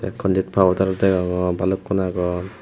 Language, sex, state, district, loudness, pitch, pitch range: Chakma, male, Tripura, Unakoti, -20 LUFS, 95 Hz, 90-95 Hz